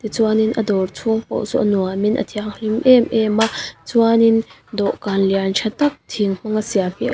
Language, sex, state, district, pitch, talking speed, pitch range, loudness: Mizo, female, Mizoram, Aizawl, 215 Hz, 185 wpm, 200-225 Hz, -18 LUFS